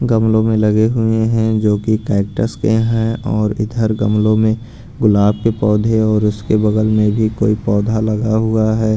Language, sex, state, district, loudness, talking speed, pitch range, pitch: Hindi, male, Punjab, Pathankot, -15 LUFS, 175 wpm, 105-110 Hz, 110 Hz